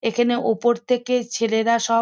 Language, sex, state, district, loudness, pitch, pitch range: Bengali, female, West Bengal, Kolkata, -21 LUFS, 235 Hz, 230-240 Hz